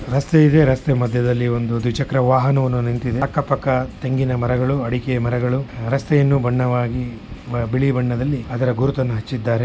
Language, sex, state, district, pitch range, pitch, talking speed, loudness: Kannada, male, Karnataka, Shimoga, 120-135 Hz, 125 Hz, 125 wpm, -19 LUFS